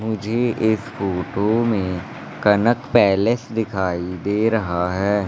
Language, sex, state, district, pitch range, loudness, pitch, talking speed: Hindi, male, Madhya Pradesh, Katni, 95-110 Hz, -20 LUFS, 105 Hz, 115 wpm